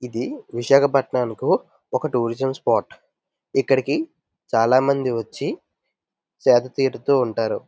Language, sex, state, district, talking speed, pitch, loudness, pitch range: Telugu, male, Andhra Pradesh, Visakhapatnam, 85 wpm, 130 Hz, -21 LUFS, 120-135 Hz